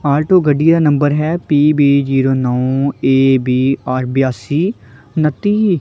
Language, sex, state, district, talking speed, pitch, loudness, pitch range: Punjabi, male, Punjab, Kapurthala, 135 wpm, 145 Hz, -14 LUFS, 135-155 Hz